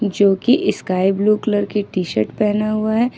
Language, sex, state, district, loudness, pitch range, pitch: Hindi, female, Jharkhand, Ranchi, -18 LUFS, 190-215 Hz, 205 Hz